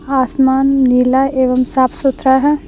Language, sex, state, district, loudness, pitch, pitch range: Hindi, female, Jharkhand, Deoghar, -13 LUFS, 265 Hz, 255-270 Hz